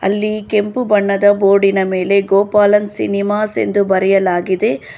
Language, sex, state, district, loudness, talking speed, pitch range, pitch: Kannada, female, Karnataka, Bangalore, -14 LUFS, 110 wpm, 195-210 Hz, 200 Hz